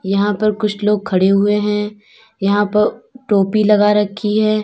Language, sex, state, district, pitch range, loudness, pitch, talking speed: Hindi, female, Uttar Pradesh, Lalitpur, 205-210 Hz, -16 LUFS, 210 Hz, 170 wpm